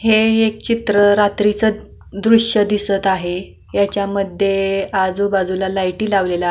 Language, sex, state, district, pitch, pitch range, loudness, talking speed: Marathi, female, Maharashtra, Pune, 200 Hz, 195-215 Hz, -16 LUFS, 110 wpm